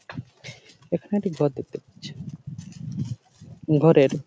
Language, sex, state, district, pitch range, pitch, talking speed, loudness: Bengali, male, West Bengal, Paschim Medinipur, 140-165 Hz, 150 Hz, 85 wpm, -23 LUFS